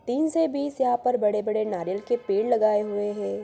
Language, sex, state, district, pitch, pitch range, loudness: Hindi, female, Bihar, Araria, 220 Hz, 205-285 Hz, -25 LUFS